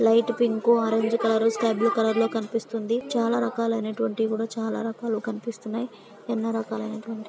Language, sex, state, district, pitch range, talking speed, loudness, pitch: Telugu, female, Andhra Pradesh, Anantapur, 225-230 Hz, 150 wpm, -25 LUFS, 225 Hz